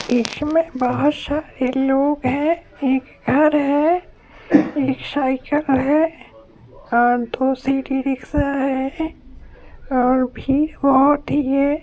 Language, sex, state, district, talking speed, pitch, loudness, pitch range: Hindi, female, Bihar, Supaul, 105 wpm, 270 Hz, -19 LUFS, 260-295 Hz